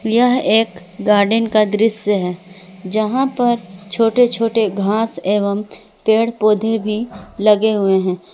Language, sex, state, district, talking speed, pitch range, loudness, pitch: Hindi, female, Jharkhand, Palamu, 130 wpm, 200-225 Hz, -16 LUFS, 215 Hz